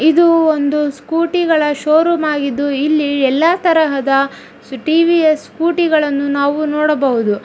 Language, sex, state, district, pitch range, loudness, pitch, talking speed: Kannada, female, Karnataka, Dharwad, 280-325 Hz, -14 LUFS, 300 Hz, 120 wpm